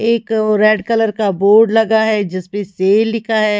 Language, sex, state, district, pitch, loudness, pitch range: Hindi, female, Chhattisgarh, Raipur, 215 Hz, -14 LUFS, 205-225 Hz